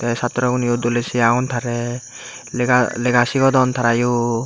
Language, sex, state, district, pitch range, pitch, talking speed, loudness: Chakma, male, Tripura, Dhalai, 120-125 Hz, 120 Hz, 175 wpm, -18 LUFS